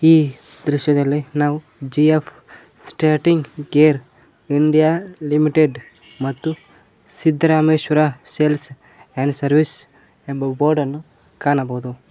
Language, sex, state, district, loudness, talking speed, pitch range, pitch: Kannada, male, Karnataka, Koppal, -18 LUFS, 90 wpm, 135-155 Hz, 150 Hz